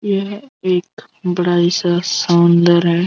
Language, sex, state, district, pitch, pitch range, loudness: Hindi, male, Jharkhand, Jamtara, 175 Hz, 175-190 Hz, -15 LUFS